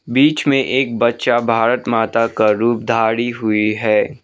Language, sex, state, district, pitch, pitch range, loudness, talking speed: Hindi, male, Sikkim, Gangtok, 115 Hz, 110-125 Hz, -16 LUFS, 155 wpm